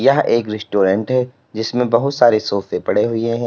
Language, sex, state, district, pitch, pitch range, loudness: Hindi, male, Uttar Pradesh, Lalitpur, 115 Hz, 110-125 Hz, -17 LUFS